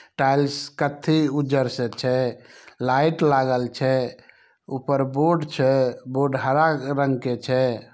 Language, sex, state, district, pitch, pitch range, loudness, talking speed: Maithili, male, Bihar, Samastipur, 135 Hz, 130-145 Hz, -22 LUFS, 120 wpm